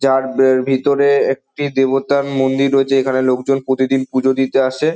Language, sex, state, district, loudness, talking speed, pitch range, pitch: Bengali, male, West Bengal, Dakshin Dinajpur, -15 LUFS, 155 wpm, 130-135 Hz, 135 Hz